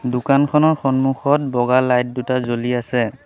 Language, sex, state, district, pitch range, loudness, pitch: Assamese, male, Assam, Sonitpur, 125-140 Hz, -18 LUFS, 130 Hz